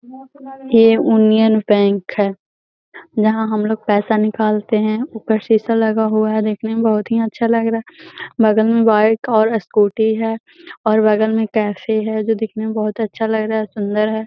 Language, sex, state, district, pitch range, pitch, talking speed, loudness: Hindi, female, Bihar, Gaya, 215-225 Hz, 220 Hz, 190 wpm, -16 LUFS